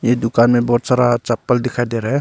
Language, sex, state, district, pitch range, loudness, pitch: Hindi, male, Arunachal Pradesh, Longding, 120-125 Hz, -16 LUFS, 120 Hz